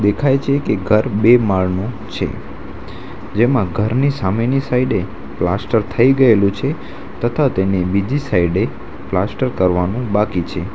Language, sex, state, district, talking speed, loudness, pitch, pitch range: Gujarati, male, Gujarat, Valsad, 130 wpm, -17 LUFS, 105 Hz, 95-125 Hz